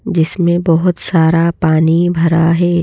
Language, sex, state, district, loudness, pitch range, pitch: Hindi, female, Madhya Pradesh, Bhopal, -12 LUFS, 165-175 Hz, 170 Hz